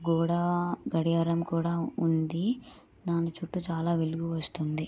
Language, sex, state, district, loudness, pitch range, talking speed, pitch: Telugu, female, Andhra Pradesh, Srikakulam, -30 LUFS, 165-170 Hz, 110 wpm, 170 Hz